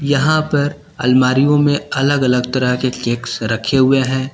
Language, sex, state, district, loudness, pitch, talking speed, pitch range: Hindi, male, Uttar Pradesh, Lucknow, -15 LUFS, 130 Hz, 165 wpm, 125-145 Hz